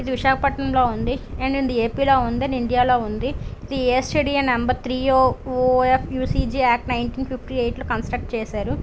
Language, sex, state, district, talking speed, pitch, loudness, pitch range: Telugu, female, Andhra Pradesh, Visakhapatnam, 115 wpm, 255 Hz, -21 LUFS, 245-265 Hz